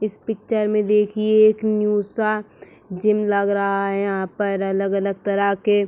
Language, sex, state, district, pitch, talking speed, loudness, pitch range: Hindi, female, Uttar Pradesh, Etah, 205 Hz, 175 wpm, -20 LUFS, 200-215 Hz